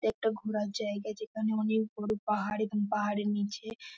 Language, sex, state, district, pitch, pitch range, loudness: Bengali, female, West Bengal, North 24 Parganas, 215 Hz, 205-215 Hz, -33 LUFS